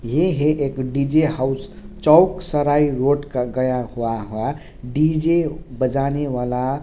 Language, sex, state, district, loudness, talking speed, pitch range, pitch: Hindi, male, Bihar, Kishanganj, -20 LUFS, 140 wpm, 130-155 Hz, 140 Hz